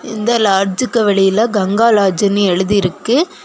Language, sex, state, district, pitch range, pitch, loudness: Tamil, female, Tamil Nadu, Kanyakumari, 195-230 Hz, 205 Hz, -14 LUFS